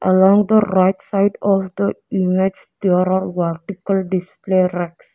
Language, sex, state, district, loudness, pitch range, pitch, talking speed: English, female, Arunachal Pradesh, Lower Dibang Valley, -18 LUFS, 185-200 Hz, 190 Hz, 140 wpm